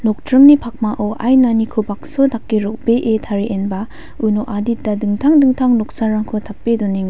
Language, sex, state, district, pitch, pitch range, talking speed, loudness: Garo, female, Meghalaya, West Garo Hills, 220 Hz, 210-245 Hz, 120 wpm, -15 LUFS